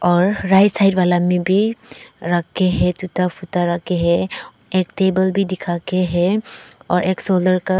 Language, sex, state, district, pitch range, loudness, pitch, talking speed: Hindi, female, Arunachal Pradesh, Papum Pare, 175-190 Hz, -18 LUFS, 185 Hz, 170 wpm